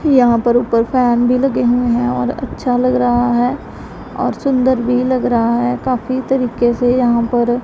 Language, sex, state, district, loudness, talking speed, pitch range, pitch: Hindi, female, Punjab, Pathankot, -15 LUFS, 190 wpm, 240-255 Hz, 245 Hz